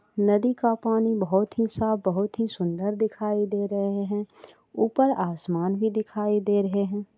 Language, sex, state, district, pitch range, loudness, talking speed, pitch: Maithili, female, Bihar, Supaul, 200-220 Hz, -25 LUFS, 165 wpm, 210 Hz